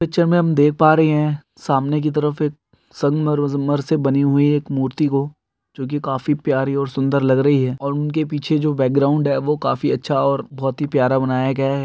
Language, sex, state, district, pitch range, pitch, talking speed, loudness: Hindi, male, Andhra Pradesh, Guntur, 135-150 Hz, 145 Hz, 205 wpm, -18 LUFS